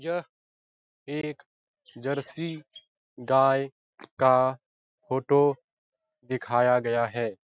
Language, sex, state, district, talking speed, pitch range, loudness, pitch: Hindi, male, Bihar, Jahanabad, 70 wpm, 125-150 Hz, -26 LUFS, 135 Hz